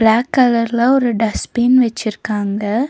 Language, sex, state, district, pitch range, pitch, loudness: Tamil, female, Tamil Nadu, Nilgiris, 220-245 Hz, 230 Hz, -15 LUFS